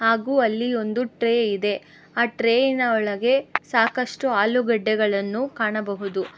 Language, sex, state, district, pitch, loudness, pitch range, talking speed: Kannada, female, Karnataka, Bangalore, 230 Hz, -22 LUFS, 215-245 Hz, 105 wpm